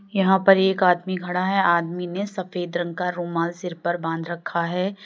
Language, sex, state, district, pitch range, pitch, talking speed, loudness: Hindi, female, Uttar Pradesh, Lalitpur, 170-190 Hz, 180 Hz, 200 wpm, -22 LUFS